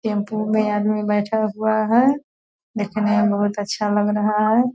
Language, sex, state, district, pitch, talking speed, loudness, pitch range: Hindi, female, Bihar, Purnia, 215 Hz, 165 wpm, -20 LUFS, 210-220 Hz